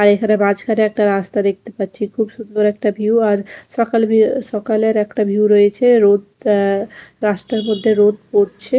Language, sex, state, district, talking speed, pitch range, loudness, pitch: Bengali, female, Odisha, Khordha, 165 wpm, 205-220 Hz, -16 LUFS, 210 Hz